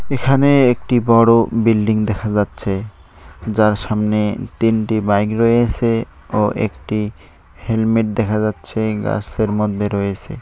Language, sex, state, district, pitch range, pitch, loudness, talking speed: Bengali, male, West Bengal, Cooch Behar, 105-115 Hz, 110 Hz, -17 LUFS, 110 wpm